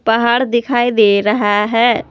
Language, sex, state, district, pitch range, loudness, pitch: Hindi, female, Jharkhand, Palamu, 210-240 Hz, -13 LUFS, 235 Hz